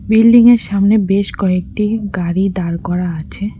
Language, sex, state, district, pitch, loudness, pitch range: Bengali, female, West Bengal, Cooch Behar, 200 Hz, -14 LUFS, 180-215 Hz